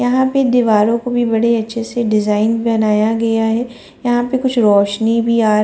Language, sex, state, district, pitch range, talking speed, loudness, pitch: Hindi, female, Delhi, New Delhi, 220-240 Hz, 200 wpm, -15 LUFS, 230 Hz